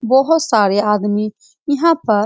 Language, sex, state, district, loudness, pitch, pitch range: Hindi, female, Bihar, Supaul, -15 LUFS, 215 Hz, 205-285 Hz